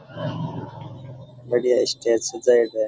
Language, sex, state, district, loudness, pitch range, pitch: Rajasthani, male, Rajasthan, Churu, -22 LUFS, 120-140 Hz, 125 Hz